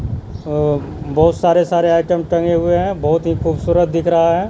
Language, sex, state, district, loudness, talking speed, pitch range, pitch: Hindi, male, Bihar, Katihar, -16 LUFS, 175 wpm, 150-170 Hz, 165 Hz